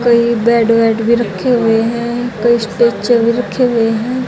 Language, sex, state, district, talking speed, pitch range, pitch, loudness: Hindi, female, Haryana, Jhajjar, 180 wpm, 230-240 Hz, 235 Hz, -13 LUFS